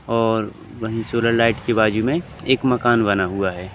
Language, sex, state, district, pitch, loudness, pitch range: Hindi, male, Madhya Pradesh, Katni, 115 Hz, -19 LUFS, 110-120 Hz